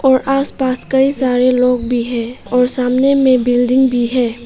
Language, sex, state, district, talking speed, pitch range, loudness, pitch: Hindi, female, Arunachal Pradesh, Papum Pare, 175 wpm, 245-265 Hz, -13 LUFS, 250 Hz